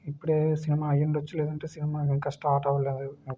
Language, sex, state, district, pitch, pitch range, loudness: Telugu, male, Andhra Pradesh, Srikakulam, 150 Hz, 140-155 Hz, -28 LUFS